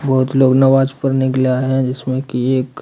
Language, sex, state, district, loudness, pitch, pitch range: Hindi, male, Bihar, Katihar, -15 LUFS, 130 Hz, 130-135 Hz